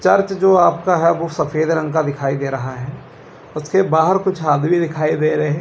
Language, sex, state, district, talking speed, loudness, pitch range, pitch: Hindi, male, Chandigarh, Chandigarh, 215 wpm, -17 LUFS, 150-175 Hz, 160 Hz